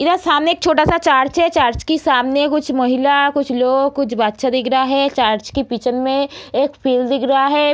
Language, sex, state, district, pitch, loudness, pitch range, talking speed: Hindi, female, Bihar, Samastipur, 275 Hz, -16 LUFS, 255-290 Hz, 215 wpm